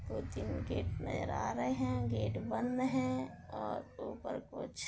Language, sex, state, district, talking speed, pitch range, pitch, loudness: Hindi, female, Bihar, Darbhanga, 170 wpm, 100-130 Hz, 105 Hz, -38 LUFS